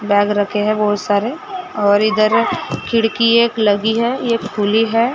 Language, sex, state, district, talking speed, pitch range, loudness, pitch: Hindi, female, Maharashtra, Gondia, 175 wpm, 205-230 Hz, -16 LUFS, 215 Hz